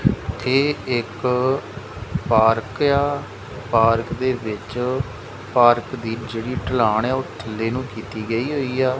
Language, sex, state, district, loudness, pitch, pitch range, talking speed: Punjabi, male, Punjab, Kapurthala, -21 LUFS, 120 Hz, 110-130 Hz, 125 wpm